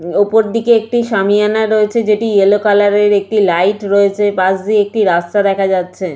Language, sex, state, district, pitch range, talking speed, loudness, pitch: Bengali, female, West Bengal, Purulia, 195-215 Hz, 185 wpm, -13 LUFS, 205 Hz